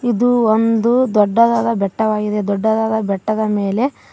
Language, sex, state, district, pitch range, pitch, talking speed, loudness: Kannada, female, Karnataka, Koppal, 210-230 Hz, 220 Hz, 115 wpm, -16 LUFS